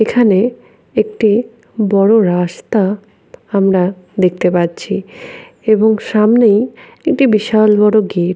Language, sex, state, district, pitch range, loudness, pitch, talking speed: Bengali, female, West Bengal, Paschim Medinipur, 195-230 Hz, -13 LUFS, 215 Hz, 100 wpm